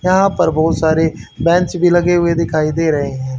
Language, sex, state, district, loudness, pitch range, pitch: Hindi, female, Haryana, Charkhi Dadri, -15 LUFS, 155-175 Hz, 165 Hz